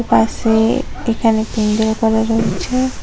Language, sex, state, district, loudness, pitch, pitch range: Bengali, female, West Bengal, Cooch Behar, -16 LUFS, 225 Hz, 220-225 Hz